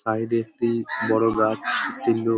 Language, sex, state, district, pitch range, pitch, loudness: Bengali, male, West Bengal, Paschim Medinipur, 110-115 Hz, 115 Hz, -23 LUFS